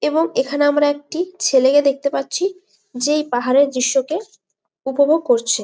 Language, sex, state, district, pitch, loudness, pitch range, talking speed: Bengali, female, West Bengal, Malda, 290 Hz, -18 LUFS, 265-325 Hz, 125 wpm